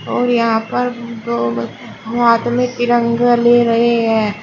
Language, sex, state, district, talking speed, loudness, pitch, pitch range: Hindi, female, Uttar Pradesh, Shamli, 150 wpm, -15 LUFS, 235 Hz, 225-240 Hz